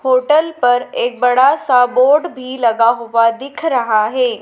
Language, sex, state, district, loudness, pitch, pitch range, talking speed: Hindi, female, Madhya Pradesh, Dhar, -14 LUFS, 255 Hz, 235-280 Hz, 165 wpm